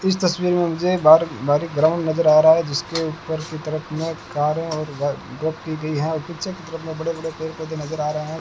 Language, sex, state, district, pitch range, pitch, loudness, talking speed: Hindi, male, Rajasthan, Bikaner, 155-165 Hz, 160 Hz, -21 LUFS, 220 wpm